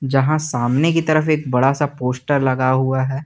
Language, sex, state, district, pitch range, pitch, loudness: Hindi, male, Jharkhand, Garhwa, 130-155 Hz, 135 Hz, -18 LUFS